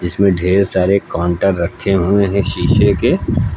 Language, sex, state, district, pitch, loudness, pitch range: Hindi, male, Uttar Pradesh, Lucknow, 100 Hz, -15 LUFS, 90-100 Hz